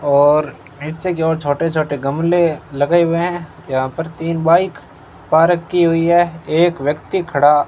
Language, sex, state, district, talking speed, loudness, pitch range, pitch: Hindi, male, Rajasthan, Bikaner, 165 wpm, -16 LUFS, 145-170 Hz, 160 Hz